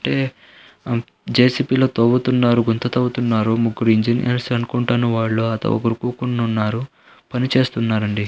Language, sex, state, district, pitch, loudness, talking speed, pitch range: Telugu, male, Andhra Pradesh, Anantapur, 120 Hz, -19 LUFS, 110 wpm, 115-125 Hz